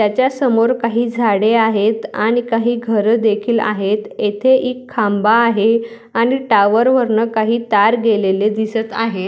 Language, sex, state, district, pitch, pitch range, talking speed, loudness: Marathi, female, Maharashtra, Dhule, 225 Hz, 215-235 Hz, 135 wpm, -15 LUFS